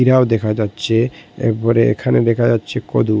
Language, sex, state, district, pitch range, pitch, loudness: Bengali, male, Assam, Hailakandi, 110-120 Hz, 115 Hz, -16 LUFS